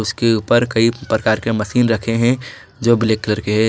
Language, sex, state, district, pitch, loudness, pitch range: Hindi, male, Jharkhand, Garhwa, 115 Hz, -17 LUFS, 110-120 Hz